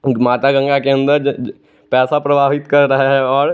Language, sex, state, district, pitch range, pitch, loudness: Hindi, male, Chandigarh, Chandigarh, 135-140 Hz, 140 Hz, -14 LUFS